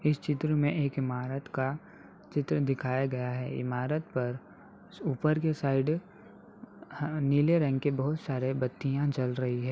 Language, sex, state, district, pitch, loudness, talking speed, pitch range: Hindi, male, Uttar Pradesh, Ghazipur, 145 Hz, -31 LUFS, 155 wpm, 130-155 Hz